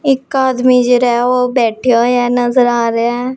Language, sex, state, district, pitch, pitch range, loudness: Hindi, male, Punjab, Pathankot, 245 Hz, 240-255 Hz, -12 LUFS